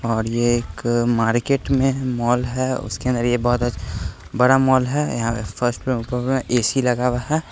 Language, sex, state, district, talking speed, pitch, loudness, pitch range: Hindi, male, Bihar, West Champaran, 175 wpm, 120 Hz, -20 LUFS, 115-130 Hz